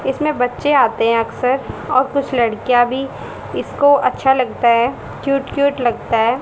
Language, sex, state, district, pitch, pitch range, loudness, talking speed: Hindi, female, Haryana, Charkhi Dadri, 260 Hz, 240-275 Hz, -16 LUFS, 160 wpm